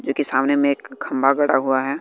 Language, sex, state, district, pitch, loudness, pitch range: Hindi, male, Bihar, West Champaran, 135 Hz, -19 LUFS, 130-140 Hz